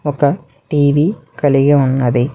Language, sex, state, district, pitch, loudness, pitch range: Telugu, male, Telangana, Hyderabad, 145 Hz, -14 LUFS, 135-145 Hz